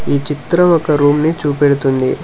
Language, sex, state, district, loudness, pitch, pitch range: Telugu, male, Telangana, Hyderabad, -13 LUFS, 145 Hz, 140-160 Hz